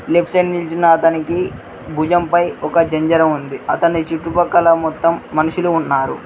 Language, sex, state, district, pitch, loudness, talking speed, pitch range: Telugu, male, Telangana, Mahabubabad, 165 Hz, -16 LUFS, 125 wpm, 160-175 Hz